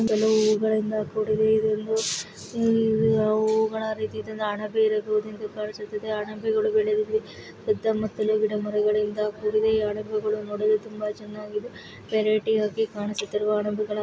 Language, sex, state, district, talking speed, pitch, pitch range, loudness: Kannada, female, Karnataka, Raichur, 120 wpm, 215 Hz, 210-220 Hz, -25 LUFS